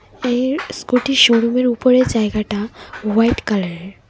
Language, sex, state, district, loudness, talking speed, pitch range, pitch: Bengali, female, Tripura, West Tripura, -16 LUFS, 100 wpm, 210-250 Hz, 235 Hz